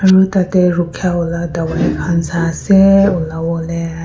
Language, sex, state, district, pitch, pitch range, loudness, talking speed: Nagamese, female, Nagaland, Kohima, 170 Hz, 165-190 Hz, -14 LUFS, 135 wpm